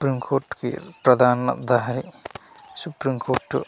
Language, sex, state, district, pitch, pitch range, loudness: Telugu, male, Andhra Pradesh, Manyam, 125 Hz, 125-135 Hz, -23 LUFS